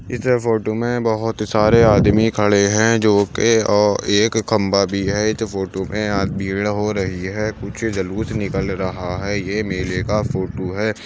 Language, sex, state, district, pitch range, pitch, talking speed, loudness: Hindi, male, Uttar Pradesh, Jyotiba Phule Nagar, 100-110 Hz, 105 Hz, 175 wpm, -18 LUFS